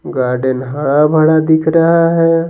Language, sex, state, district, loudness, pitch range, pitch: Hindi, male, Bihar, Patna, -12 LUFS, 135-165 Hz, 155 Hz